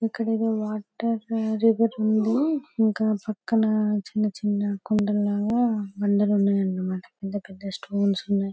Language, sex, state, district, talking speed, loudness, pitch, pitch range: Telugu, female, Telangana, Karimnagar, 110 wpm, -25 LUFS, 210 Hz, 200-225 Hz